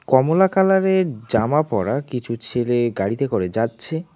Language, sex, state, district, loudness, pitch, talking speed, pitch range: Bengali, male, West Bengal, Cooch Behar, -20 LUFS, 130 Hz, 130 wpm, 115-165 Hz